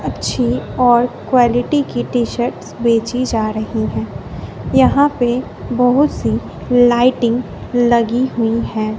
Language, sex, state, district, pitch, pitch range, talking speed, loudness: Hindi, female, Bihar, West Champaran, 240 Hz, 225-250 Hz, 120 wpm, -16 LUFS